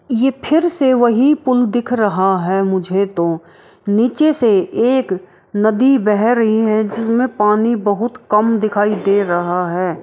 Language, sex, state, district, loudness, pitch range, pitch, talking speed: Maithili, female, Bihar, Araria, -15 LUFS, 195-240 Hz, 215 Hz, 150 wpm